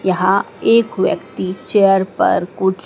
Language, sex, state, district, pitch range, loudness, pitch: Hindi, female, Madhya Pradesh, Dhar, 185-200 Hz, -16 LUFS, 190 Hz